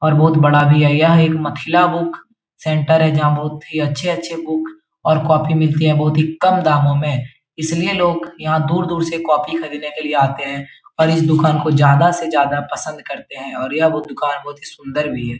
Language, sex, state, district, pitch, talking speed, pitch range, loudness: Hindi, male, Bihar, Jahanabad, 155 Hz, 210 wpm, 145-160 Hz, -16 LUFS